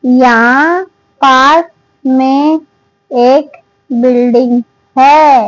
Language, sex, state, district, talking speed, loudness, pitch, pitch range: Hindi, female, Haryana, Charkhi Dadri, 65 wpm, -9 LUFS, 270 Hz, 250-305 Hz